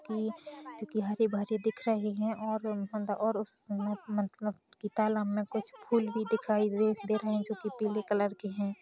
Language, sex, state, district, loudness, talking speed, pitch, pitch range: Hindi, female, Chhattisgarh, Rajnandgaon, -33 LUFS, 185 wpm, 215 Hz, 210-220 Hz